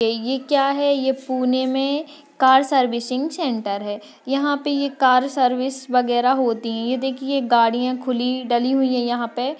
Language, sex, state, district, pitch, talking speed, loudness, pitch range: Hindi, female, Maharashtra, Pune, 260 Hz, 175 wpm, -20 LUFS, 245-275 Hz